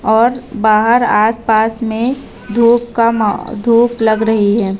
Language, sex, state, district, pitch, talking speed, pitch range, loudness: Hindi, female, Uttar Pradesh, Lucknow, 225 Hz, 135 wpm, 220-235 Hz, -13 LUFS